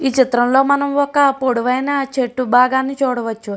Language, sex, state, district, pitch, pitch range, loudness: Telugu, female, Andhra Pradesh, Srikakulam, 260 Hz, 245-275 Hz, -16 LUFS